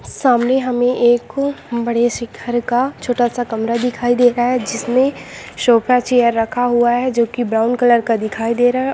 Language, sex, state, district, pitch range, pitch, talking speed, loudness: Hindi, female, Bihar, Saran, 235-250 Hz, 240 Hz, 180 wpm, -16 LUFS